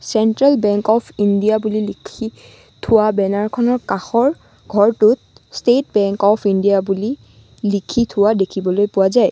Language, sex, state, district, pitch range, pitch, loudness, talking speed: Assamese, female, Assam, Sonitpur, 200-230 Hz, 215 Hz, -16 LUFS, 130 wpm